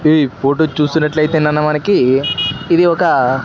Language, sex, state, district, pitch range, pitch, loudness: Telugu, male, Andhra Pradesh, Sri Satya Sai, 145-160 Hz, 150 Hz, -14 LUFS